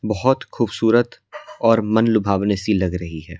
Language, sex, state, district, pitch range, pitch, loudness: Hindi, male, Delhi, New Delhi, 95-115 Hz, 105 Hz, -19 LUFS